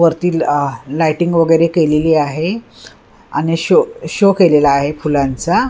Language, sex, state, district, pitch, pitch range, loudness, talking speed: Marathi, female, Maharashtra, Mumbai Suburban, 160 Hz, 150-175 Hz, -14 LUFS, 125 wpm